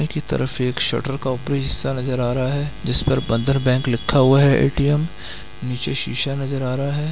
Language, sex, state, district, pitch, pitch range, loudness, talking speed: Hindi, male, Bihar, Gaya, 135 Hz, 130-140 Hz, -20 LUFS, 210 wpm